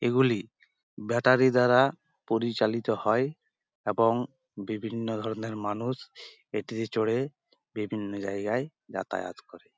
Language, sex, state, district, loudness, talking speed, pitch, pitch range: Bengali, male, West Bengal, Jhargram, -28 LUFS, 90 wpm, 115 Hz, 110-125 Hz